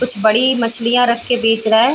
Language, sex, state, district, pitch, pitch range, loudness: Hindi, female, Bihar, Saran, 235 Hz, 225-245 Hz, -14 LUFS